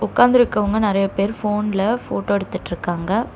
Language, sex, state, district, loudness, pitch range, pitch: Tamil, female, Tamil Nadu, Chennai, -19 LUFS, 195-220 Hz, 205 Hz